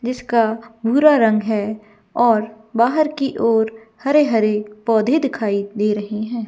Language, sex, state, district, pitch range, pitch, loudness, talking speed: Hindi, female, Chhattisgarh, Bilaspur, 215-240 Hz, 225 Hz, -18 LUFS, 140 wpm